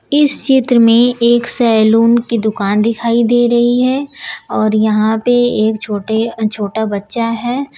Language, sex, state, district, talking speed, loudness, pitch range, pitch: Hindi, female, Uttar Pradesh, Shamli, 140 wpm, -13 LUFS, 220-240 Hz, 230 Hz